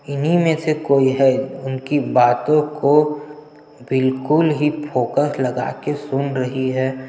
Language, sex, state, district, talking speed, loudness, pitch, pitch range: Hindi, male, Chhattisgarh, Jashpur, 135 wpm, -18 LUFS, 140 Hz, 130-150 Hz